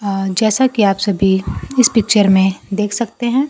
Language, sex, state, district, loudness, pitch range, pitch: Hindi, female, Bihar, Kaimur, -15 LUFS, 195-235 Hz, 210 Hz